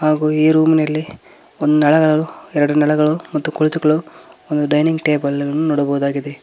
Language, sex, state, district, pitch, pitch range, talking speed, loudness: Kannada, male, Karnataka, Koppal, 155 Hz, 150-155 Hz, 140 wpm, -16 LUFS